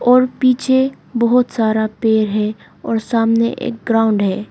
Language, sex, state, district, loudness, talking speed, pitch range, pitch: Hindi, female, Arunachal Pradesh, Lower Dibang Valley, -16 LUFS, 145 wpm, 220-250 Hz, 230 Hz